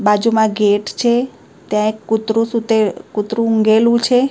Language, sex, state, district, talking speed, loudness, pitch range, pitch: Gujarati, female, Gujarat, Gandhinagar, 140 wpm, -16 LUFS, 210-230 Hz, 220 Hz